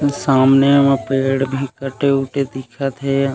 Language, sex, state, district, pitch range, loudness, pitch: Chhattisgarhi, male, Chhattisgarh, Raigarh, 135-140 Hz, -17 LUFS, 135 Hz